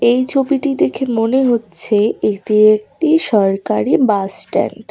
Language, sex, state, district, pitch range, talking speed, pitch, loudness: Bengali, female, West Bengal, Cooch Behar, 210-265 Hz, 135 wpm, 225 Hz, -15 LUFS